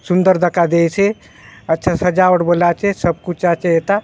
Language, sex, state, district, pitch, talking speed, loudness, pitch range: Halbi, male, Chhattisgarh, Bastar, 175 Hz, 195 wpm, -15 LUFS, 170-185 Hz